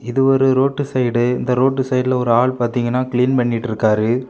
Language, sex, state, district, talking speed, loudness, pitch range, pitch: Tamil, male, Tamil Nadu, Kanyakumari, 165 wpm, -17 LUFS, 120-130 Hz, 125 Hz